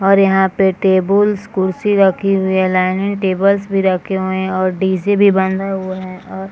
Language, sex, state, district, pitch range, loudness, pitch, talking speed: Hindi, female, Bihar, Madhepura, 190-195 Hz, -15 LUFS, 190 Hz, 195 wpm